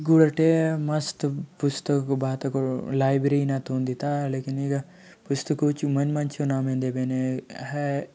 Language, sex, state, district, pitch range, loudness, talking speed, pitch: Halbi, male, Chhattisgarh, Bastar, 135-150 Hz, -25 LUFS, 120 wpm, 140 Hz